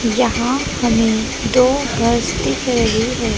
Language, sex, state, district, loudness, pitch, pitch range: Hindi, female, Maharashtra, Gondia, -16 LUFS, 240 Hz, 225-250 Hz